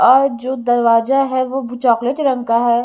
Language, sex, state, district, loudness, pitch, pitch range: Hindi, female, Chhattisgarh, Raipur, -16 LUFS, 250 Hz, 240-265 Hz